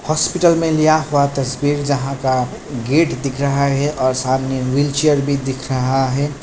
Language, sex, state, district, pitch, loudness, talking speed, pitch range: Hindi, male, Bihar, Kishanganj, 140 Hz, -17 LUFS, 175 wpm, 130-145 Hz